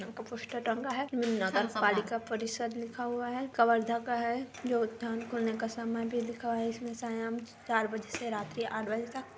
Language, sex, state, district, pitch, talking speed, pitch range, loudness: Hindi, female, Chhattisgarh, Kabirdham, 230 Hz, 180 wpm, 225-240 Hz, -33 LUFS